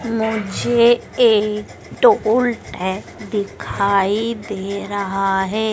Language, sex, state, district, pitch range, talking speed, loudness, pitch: Hindi, female, Madhya Pradesh, Dhar, 200-230 Hz, 75 wpm, -18 LUFS, 210 Hz